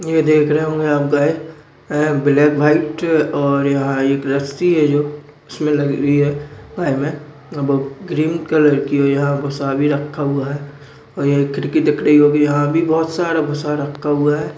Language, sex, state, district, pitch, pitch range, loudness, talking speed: Hindi, male, Maharashtra, Solapur, 145 Hz, 140-150 Hz, -16 LUFS, 165 wpm